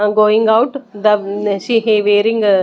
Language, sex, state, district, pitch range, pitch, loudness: English, female, Chandigarh, Chandigarh, 205-225 Hz, 210 Hz, -14 LUFS